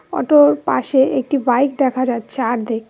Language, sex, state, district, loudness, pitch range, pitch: Bengali, female, West Bengal, Cooch Behar, -16 LUFS, 240-275 Hz, 260 Hz